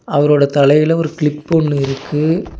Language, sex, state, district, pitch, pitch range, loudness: Tamil, male, Tamil Nadu, Nilgiris, 150 Hz, 145-160 Hz, -14 LUFS